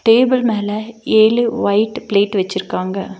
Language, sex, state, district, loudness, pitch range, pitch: Tamil, female, Tamil Nadu, Nilgiris, -16 LUFS, 200-230 Hz, 215 Hz